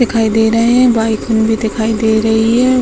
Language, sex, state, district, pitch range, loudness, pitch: Hindi, female, Bihar, Sitamarhi, 220-235 Hz, -12 LUFS, 225 Hz